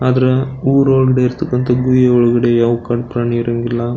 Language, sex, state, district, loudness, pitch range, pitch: Kannada, male, Karnataka, Belgaum, -14 LUFS, 120-130 Hz, 125 Hz